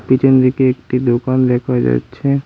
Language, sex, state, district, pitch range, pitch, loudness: Bengali, male, West Bengal, Cooch Behar, 125-130 Hz, 125 Hz, -15 LUFS